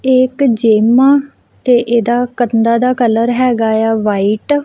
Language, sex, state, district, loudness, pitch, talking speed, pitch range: Punjabi, female, Punjab, Kapurthala, -12 LUFS, 240 Hz, 170 wpm, 225-255 Hz